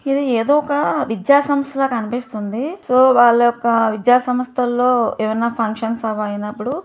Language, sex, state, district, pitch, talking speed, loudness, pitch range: Telugu, female, Andhra Pradesh, Visakhapatnam, 245 Hz, 130 wpm, -17 LUFS, 225-270 Hz